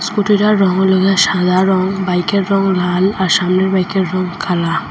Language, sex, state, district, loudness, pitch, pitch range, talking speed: Bengali, female, Assam, Hailakandi, -14 LUFS, 190 Hz, 180-195 Hz, 170 wpm